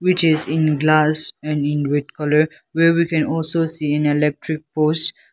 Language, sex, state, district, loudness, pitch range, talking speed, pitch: English, male, Nagaland, Kohima, -18 LUFS, 150-160 Hz, 180 wpm, 155 Hz